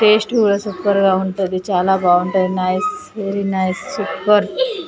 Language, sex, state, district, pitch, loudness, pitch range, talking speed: Telugu, female, Andhra Pradesh, Chittoor, 195 Hz, -17 LUFS, 185-210 Hz, 145 wpm